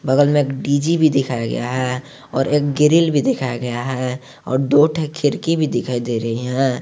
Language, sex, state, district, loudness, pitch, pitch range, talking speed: Hindi, male, Jharkhand, Garhwa, -18 LUFS, 135 Hz, 125-150 Hz, 200 wpm